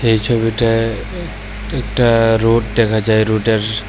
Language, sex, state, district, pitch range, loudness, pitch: Bengali, male, Tripura, West Tripura, 110-115 Hz, -15 LUFS, 115 Hz